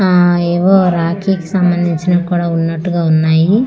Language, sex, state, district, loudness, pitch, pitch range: Telugu, female, Andhra Pradesh, Manyam, -13 LUFS, 175 Hz, 170-180 Hz